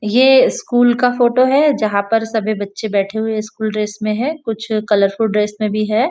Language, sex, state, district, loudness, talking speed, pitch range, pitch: Hindi, female, Maharashtra, Nagpur, -16 LUFS, 205 wpm, 215-245 Hz, 220 Hz